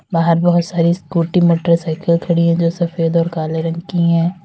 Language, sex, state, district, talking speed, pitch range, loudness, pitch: Hindi, female, Uttar Pradesh, Lalitpur, 190 wpm, 165-170 Hz, -16 LUFS, 170 Hz